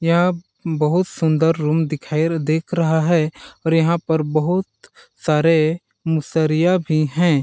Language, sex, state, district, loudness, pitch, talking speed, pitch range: Hindi, male, Chhattisgarh, Balrampur, -19 LUFS, 160 Hz, 130 wpm, 155-170 Hz